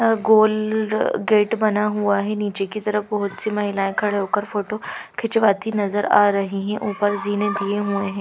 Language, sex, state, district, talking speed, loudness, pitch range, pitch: Hindi, female, Haryana, Rohtak, 175 wpm, -21 LUFS, 200-215 Hz, 205 Hz